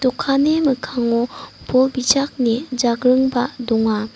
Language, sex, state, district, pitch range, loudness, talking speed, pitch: Garo, female, Meghalaya, West Garo Hills, 240-265 Hz, -18 LUFS, 85 wpm, 255 Hz